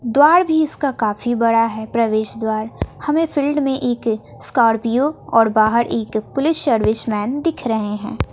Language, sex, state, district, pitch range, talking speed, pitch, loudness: Hindi, female, Bihar, West Champaran, 220-280 Hz, 160 wpm, 230 Hz, -18 LUFS